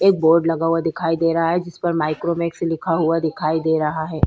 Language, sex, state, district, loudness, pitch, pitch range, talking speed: Hindi, female, Uttarakhand, Tehri Garhwal, -20 LUFS, 165 Hz, 160-170 Hz, 255 wpm